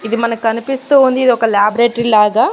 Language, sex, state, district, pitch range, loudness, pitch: Telugu, female, Andhra Pradesh, Annamaya, 220-255 Hz, -13 LUFS, 230 Hz